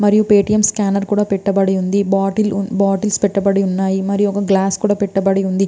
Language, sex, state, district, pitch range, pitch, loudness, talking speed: Telugu, female, Andhra Pradesh, Visakhapatnam, 195-205 Hz, 200 Hz, -16 LUFS, 180 wpm